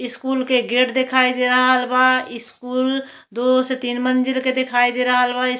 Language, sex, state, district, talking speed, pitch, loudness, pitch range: Bhojpuri, female, Uttar Pradesh, Deoria, 205 wpm, 255 Hz, -18 LUFS, 250-255 Hz